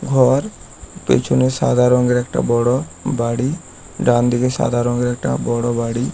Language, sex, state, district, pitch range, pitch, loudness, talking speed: Bengali, male, West Bengal, Paschim Medinipur, 120-125 Hz, 120 Hz, -17 LUFS, 145 wpm